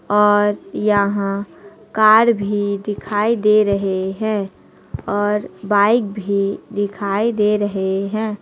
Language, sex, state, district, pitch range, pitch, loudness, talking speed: Hindi, female, Chhattisgarh, Raipur, 200-210 Hz, 205 Hz, -18 LUFS, 105 wpm